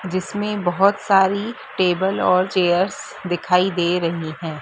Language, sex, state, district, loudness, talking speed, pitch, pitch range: Hindi, female, Madhya Pradesh, Dhar, -19 LUFS, 130 wpm, 185 Hz, 175-200 Hz